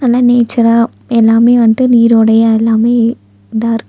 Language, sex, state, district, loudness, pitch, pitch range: Tamil, female, Tamil Nadu, Nilgiris, -10 LUFS, 230 Hz, 225-240 Hz